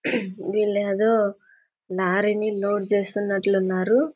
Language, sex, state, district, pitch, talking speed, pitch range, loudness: Telugu, female, Andhra Pradesh, Anantapur, 205 Hz, 70 wpm, 195-215 Hz, -23 LUFS